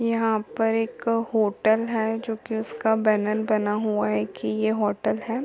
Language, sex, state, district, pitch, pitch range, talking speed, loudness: Hindi, female, Chhattisgarh, Kabirdham, 220 Hz, 215-225 Hz, 175 wpm, -24 LUFS